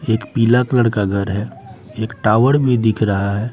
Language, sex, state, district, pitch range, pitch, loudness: Hindi, male, Bihar, Patna, 105-125 Hz, 110 Hz, -16 LUFS